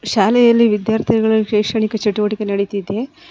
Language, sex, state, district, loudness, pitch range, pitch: Kannada, female, Karnataka, Bangalore, -16 LUFS, 210-225 Hz, 220 Hz